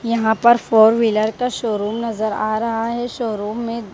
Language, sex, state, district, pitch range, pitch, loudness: Hindi, female, Punjab, Kapurthala, 215-235 Hz, 225 Hz, -18 LUFS